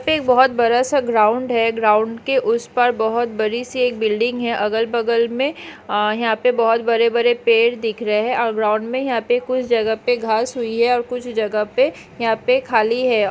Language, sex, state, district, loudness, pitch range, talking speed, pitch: Hindi, female, Bihar, Jamui, -18 LUFS, 220-245 Hz, 215 wpm, 235 Hz